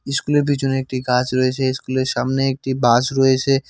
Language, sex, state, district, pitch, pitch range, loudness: Bengali, male, West Bengal, Cooch Behar, 130 Hz, 130-135 Hz, -18 LUFS